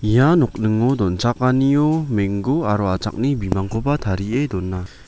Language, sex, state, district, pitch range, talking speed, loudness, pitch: Garo, male, Meghalaya, West Garo Hills, 100-135 Hz, 105 wpm, -19 LUFS, 110 Hz